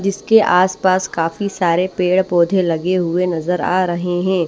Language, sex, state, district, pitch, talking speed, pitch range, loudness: Hindi, male, Odisha, Nuapada, 180 Hz, 175 wpm, 175-185 Hz, -16 LUFS